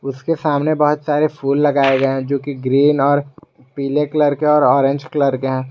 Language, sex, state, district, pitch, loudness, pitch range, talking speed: Hindi, male, Jharkhand, Garhwa, 145 Hz, -16 LUFS, 135-150 Hz, 210 wpm